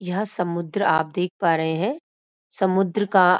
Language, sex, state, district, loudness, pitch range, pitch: Hindi, female, Uttarakhand, Uttarkashi, -22 LUFS, 170-200 Hz, 185 Hz